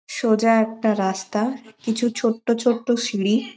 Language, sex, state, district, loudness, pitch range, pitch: Bengali, female, West Bengal, Malda, -21 LUFS, 220-240 Hz, 225 Hz